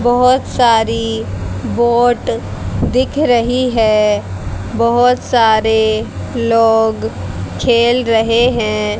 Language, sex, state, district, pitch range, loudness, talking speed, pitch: Hindi, female, Haryana, Rohtak, 205-240 Hz, -14 LUFS, 80 wpm, 225 Hz